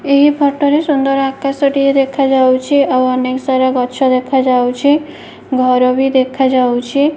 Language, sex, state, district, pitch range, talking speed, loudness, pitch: Odia, female, Odisha, Malkangiri, 255-280 Hz, 140 wpm, -13 LUFS, 270 Hz